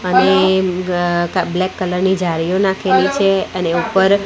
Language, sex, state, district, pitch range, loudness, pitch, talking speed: Gujarati, female, Gujarat, Gandhinagar, 180-190 Hz, -16 LUFS, 185 Hz, 185 wpm